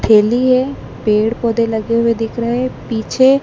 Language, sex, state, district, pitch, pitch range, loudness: Hindi, female, Madhya Pradesh, Dhar, 230 Hz, 225-255 Hz, -15 LUFS